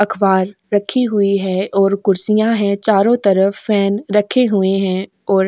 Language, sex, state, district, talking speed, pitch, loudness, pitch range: Hindi, female, Goa, North and South Goa, 165 wpm, 200 Hz, -15 LUFS, 195-210 Hz